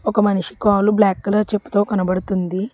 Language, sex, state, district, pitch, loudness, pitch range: Telugu, female, Telangana, Hyderabad, 200 Hz, -18 LUFS, 190-210 Hz